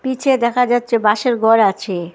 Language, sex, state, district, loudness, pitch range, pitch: Bengali, female, Assam, Hailakandi, -15 LUFS, 210-250 Hz, 235 Hz